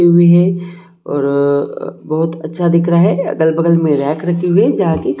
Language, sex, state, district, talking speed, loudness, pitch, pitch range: Hindi, male, Jharkhand, Jamtara, 220 wpm, -14 LUFS, 170 Hz, 155-175 Hz